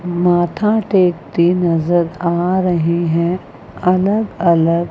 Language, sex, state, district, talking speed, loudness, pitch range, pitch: Hindi, female, Chandigarh, Chandigarh, 100 wpm, -16 LUFS, 170-180 Hz, 175 Hz